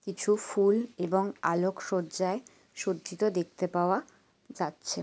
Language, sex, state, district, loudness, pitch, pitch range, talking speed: Bengali, female, West Bengal, Jalpaiguri, -30 LUFS, 190 Hz, 180-200 Hz, 105 wpm